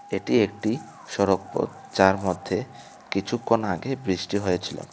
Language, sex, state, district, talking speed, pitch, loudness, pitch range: Bengali, male, Tripura, West Tripura, 120 wpm, 95 Hz, -25 LUFS, 90-110 Hz